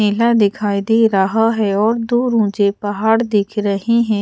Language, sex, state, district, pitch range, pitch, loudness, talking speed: Hindi, female, Odisha, Sambalpur, 205-225 Hz, 215 Hz, -16 LUFS, 170 wpm